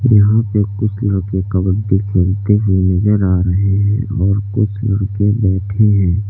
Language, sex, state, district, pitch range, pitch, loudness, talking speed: Hindi, male, Uttar Pradesh, Lalitpur, 95-105 Hz, 100 Hz, -15 LUFS, 170 wpm